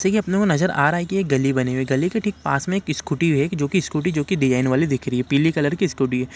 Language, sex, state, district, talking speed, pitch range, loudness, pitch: Hindi, male, Uttarakhand, Uttarkashi, 350 wpm, 135-185 Hz, -20 LUFS, 150 Hz